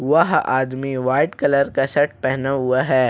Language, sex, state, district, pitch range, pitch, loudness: Hindi, male, Jharkhand, Ranchi, 130-145 Hz, 135 Hz, -19 LUFS